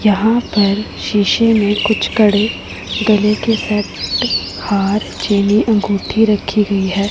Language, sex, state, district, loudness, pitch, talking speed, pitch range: Hindi, female, Punjab, Pathankot, -15 LUFS, 210 Hz, 125 wpm, 205-220 Hz